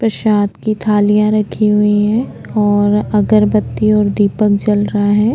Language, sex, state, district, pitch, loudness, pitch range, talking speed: Hindi, female, Uttarakhand, Tehri Garhwal, 210 Hz, -13 LUFS, 205-215 Hz, 135 wpm